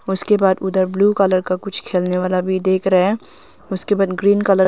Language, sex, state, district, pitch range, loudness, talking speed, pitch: Hindi, female, Arunachal Pradesh, Longding, 185-195 Hz, -17 LUFS, 230 wpm, 190 Hz